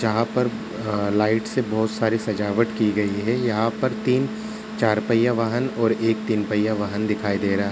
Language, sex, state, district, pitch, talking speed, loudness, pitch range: Hindi, male, Uttar Pradesh, Ghazipur, 110 Hz, 185 wpm, -22 LUFS, 105-115 Hz